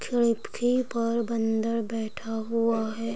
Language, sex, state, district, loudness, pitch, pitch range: Hindi, female, Bihar, Sitamarhi, -27 LUFS, 230 Hz, 225-235 Hz